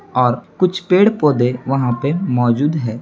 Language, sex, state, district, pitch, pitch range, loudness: Hindi, male, Bihar, Gaya, 135 Hz, 120-175 Hz, -16 LUFS